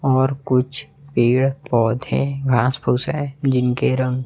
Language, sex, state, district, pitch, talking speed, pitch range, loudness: Hindi, male, Chhattisgarh, Raipur, 130 Hz, 125 wpm, 125-135 Hz, -19 LUFS